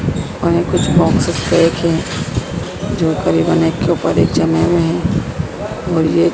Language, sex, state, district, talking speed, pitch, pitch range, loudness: Hindi, female, Madhya Pradesh, Dhar, 160 wpm, 165 Hz, 160-170 Hz, -15 LUFS